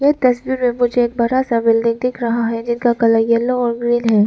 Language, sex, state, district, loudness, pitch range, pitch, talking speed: Hindi, female, Arunachal Pradesh, Lower Dibang Valley, -16 LUFS, 230-250 Hz, 240 Hz, 240 wpm